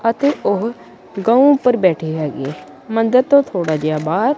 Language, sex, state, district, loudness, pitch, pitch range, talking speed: Punjabi, male, Punjab, Kapurthala, -16 LUFS, 225 Hz, 160-255 Hz, 150 wpm